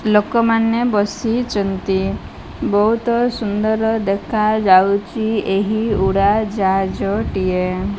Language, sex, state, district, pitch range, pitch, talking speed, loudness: Odia, female, Odisha, Malkangiri, 195-225 Hz, 210 Hz, 70 wpm, -17 LUFS